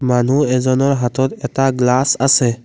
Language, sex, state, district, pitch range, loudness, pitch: Assamese, male, Assam, Kamrup Metropolitan, 125-135 Hz, -15 LUFS, 130 Hz